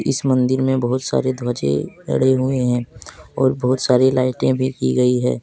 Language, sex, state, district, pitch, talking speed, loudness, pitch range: Hindi, male, Jharkhand, Deoghar, 125 Hz, 200 wpm, -18 LUFS, 110-130 Hz